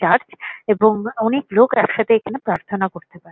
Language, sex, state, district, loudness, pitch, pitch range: Bengali, female, West Bengal, Kolkata, -18 LUFS, 220 Hz, 195-225 Hz